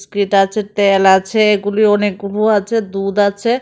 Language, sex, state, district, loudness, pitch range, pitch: Bengali, female, Tripura, West Tripura, -14 LUFS, 195-215 Hz, 205 Hz